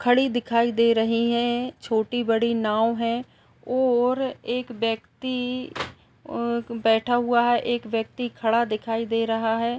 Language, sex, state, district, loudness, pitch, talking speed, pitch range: Hindi, female, Uttar Pradesh, Muzaffarnagar, -24 LUFS, 235 Hz, 140 wpm, 225-245 Hz